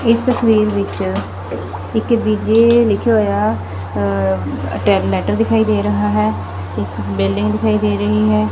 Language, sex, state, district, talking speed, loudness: Punjabi, female, Punjab, Fazilka, 125 wpm, -16 LUFS